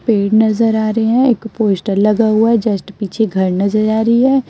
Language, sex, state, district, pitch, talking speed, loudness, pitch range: Hindi, female, Chhattisgarh, Raipur, 220 Hz, 225 wpm, -14 LUFS, 205-225 Hz